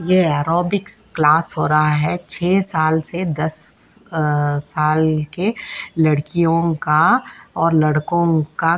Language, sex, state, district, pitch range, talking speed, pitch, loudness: Hindi, female, Uttar Pradesh, Jyotiba Phule Nagar, 155-170 Hz, 125 wpm, 160 Hz, -17 LUFS